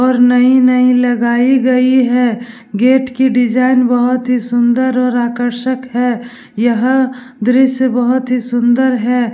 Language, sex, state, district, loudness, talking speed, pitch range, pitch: Hindi, female, Bihar, Vaishali, -12 LUFS, 135 wpm, 240-255 Hz, 250 Hz